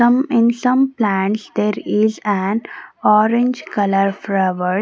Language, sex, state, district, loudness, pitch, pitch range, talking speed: English, female, Odisha, Nuapada, -17 LUFS, 210 Hz, 195-235 Hz, 125 wpm